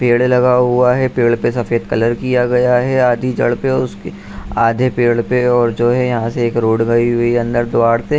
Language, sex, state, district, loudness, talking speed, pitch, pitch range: Hindi, male, Bihar, Saharsa, -14 LUFS, 235 wpm, 120 Hz, 120-125 Hz